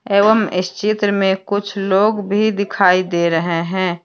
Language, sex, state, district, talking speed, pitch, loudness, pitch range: Hindi, female, Jharkhand, Deoghar, 165 wpm, 195 Hz, -16 LUFS, 180-205 Hz